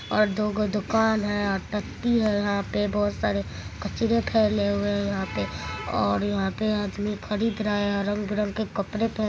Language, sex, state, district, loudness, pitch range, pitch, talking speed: Maithili, male, Bihar, Supaul, -26 LUFS, 200-215 Hz, 205 Hz, 195 wpm